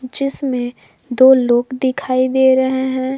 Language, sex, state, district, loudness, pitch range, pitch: Hindi, female, Jharkhand, Garhwa, -15 LUFS, 255-265 Hz, 260 Hz